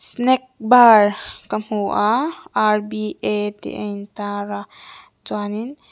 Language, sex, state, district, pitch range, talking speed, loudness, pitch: Mizo, female, Mizoram, Aizawl, 205-240 Hz, 110 wpm, -19 LUFS, 210 Hz